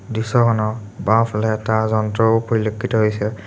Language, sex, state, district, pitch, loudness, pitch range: Assamese, male, Assam, Sonitpur, 110 Hz, -18 LUFS, 110-115 Hz